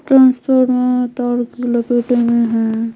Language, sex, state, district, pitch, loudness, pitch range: Hindi, female, Bihar, Patna, 245 Hz, -15 LUFS, 235-250 Hz